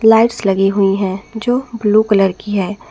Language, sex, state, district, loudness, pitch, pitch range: Hindi, female, Jharkhand, Garhwa, -15 LUFS, 205 Hz, 195-225 Hz